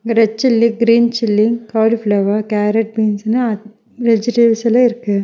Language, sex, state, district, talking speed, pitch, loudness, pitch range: Tamil, female, Tamil Nadu, Nilgiris, 115 wpm, 225 Hz, -14 LUFS, 215-235 Hz